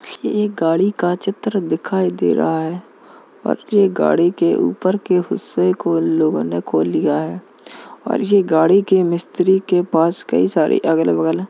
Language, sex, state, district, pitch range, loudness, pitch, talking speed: Hindi, male, Uttar Pradesh, Jalaun, 160-195 Hz, -17 LUFS, 180 Hz, 175 wpm